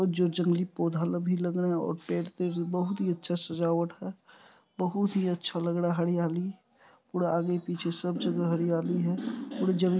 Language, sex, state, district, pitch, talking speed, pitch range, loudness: Hindi, male, Bihar, Supaul, 175 Hz, 180 wpm, 170-185 Hz, -30 LUFS